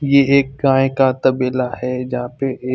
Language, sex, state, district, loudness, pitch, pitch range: Hindi, male, Punjab, Fazilka, -17 LUFS, 130 Hz, 125-135 Hz